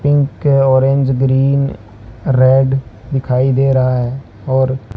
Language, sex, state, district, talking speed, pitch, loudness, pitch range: Hindi, male, Rajasthan, Bikaner, 110 wpm, 130 Hz, -14 LUFS, 130-135 Hz